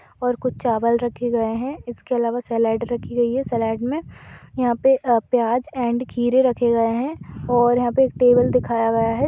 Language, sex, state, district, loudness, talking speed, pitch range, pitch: Hindi, female, Uttar Pradesh, Budaun, -20 LUFS, 195 wpm, 235-255 Hz, 240 Hz